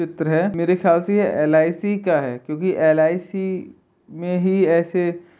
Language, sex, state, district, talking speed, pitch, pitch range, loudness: Hindi, male, Uttar Pradesh, Jalaun, 200 wpm, 175 Hz, 160-185 Hz, -19 LUFS